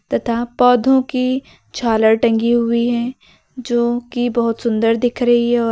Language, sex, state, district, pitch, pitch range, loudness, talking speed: Hindi, female, Uttar Pradesh, Lucknow, 240 Hz, 235-245 Hz, -16 LUFS, 145 wpm